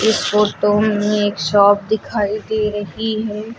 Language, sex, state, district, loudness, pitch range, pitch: Hindi, female, Uttar Pradesh, Lucknow, -17 LUFS, 205-215 Hz, 210 Hz